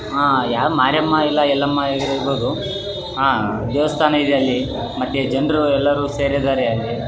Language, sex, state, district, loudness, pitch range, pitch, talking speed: Kannada, male, Karnataka, Raichur, -18 LUFS, 130-150 Hz, 140 Hz, 70 wpm